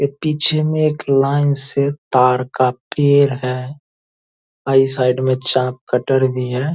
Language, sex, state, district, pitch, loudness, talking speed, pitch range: Hindi, male, Bihar, Purnia, 135 Hz, -16 LUFS, 160 wpm, 130-145 Hz